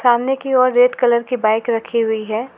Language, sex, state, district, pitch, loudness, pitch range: Hindi, female, West Bengal, Alipurduar, 240 Hz, -16 LUFS, 225-250 Hz